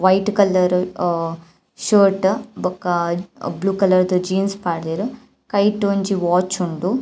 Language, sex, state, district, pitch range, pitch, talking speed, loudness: Tulu, female, Karnataka, Dakshina Kannada, 180-200 Hz, 185 Hz, 110 wpm, -19 LUFS